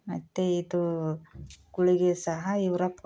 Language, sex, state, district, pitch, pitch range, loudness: Kannada, female, Karnataka, Raichur, 175 Hz, 160-180 Hz, -28 LUFS